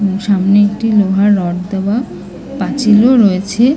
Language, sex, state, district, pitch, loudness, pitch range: Bengali, female, West Bengal, North 24 Parganas, 205 Hz, -12 LUFS, 195-225 Hz